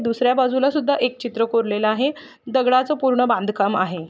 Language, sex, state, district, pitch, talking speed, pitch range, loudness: Marathi, female, Maharashtra, Solapur, 250 Hz, 175 wpm, 220-260 Hz, -20 LUFS